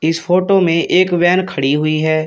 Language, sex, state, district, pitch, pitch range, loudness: Hindi, male, Uttar Pradesh, Shamli, 170 Hz, 155-180 Hz, -14 LUFS